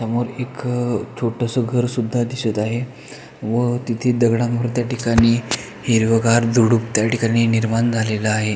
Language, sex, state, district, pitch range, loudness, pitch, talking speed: Marathi, male, Maharashtra, Pune, 115-120 Hz, -19 LUFS, 120 Hz, 135 wpm